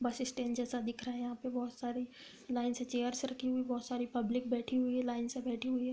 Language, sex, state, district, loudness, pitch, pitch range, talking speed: Hindi, female, Uttar Pradesh, Gorakhpur, -37 LUFS, 245 Hz, 245-255 Hz, 275 wpm